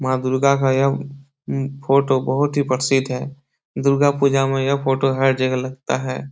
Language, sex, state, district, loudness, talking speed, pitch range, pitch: Hindi, male, Bihar, Supaul, -19 LUFS, 180 wpm, 130-140 Hz, 135 Hz